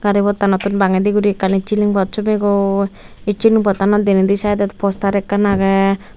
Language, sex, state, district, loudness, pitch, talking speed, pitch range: Chakma, female, Tripura, Unakoti, -16 LUFS, 200 Hz, 165 wpm, 195-205 Hz